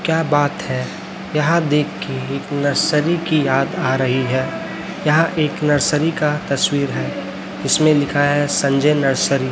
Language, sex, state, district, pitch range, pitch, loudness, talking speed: Hindi, male, Chhattisgarh, Raipur, 135-155 Hz, 145 Hz, -18 LUFS, 155 wpm